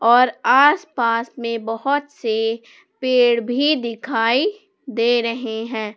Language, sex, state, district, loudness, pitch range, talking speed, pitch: Hindi, female, Jharkhand, Palamu, -19 LUFS, 230-270 Hz, 120 wpm, 235 Hz